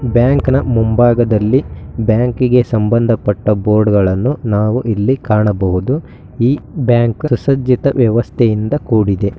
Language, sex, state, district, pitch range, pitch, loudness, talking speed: Kannada, male, Karnataka, Shimoga, 105-125 Hz, 120 Hz, -14 LUFS, 90 wpm